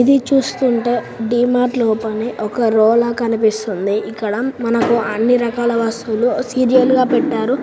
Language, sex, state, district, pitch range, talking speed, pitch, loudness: Telugu, female, Telangana, Nalgonda, 220-250 Hz, 150 wpm, 235 Hz, -16 LUFS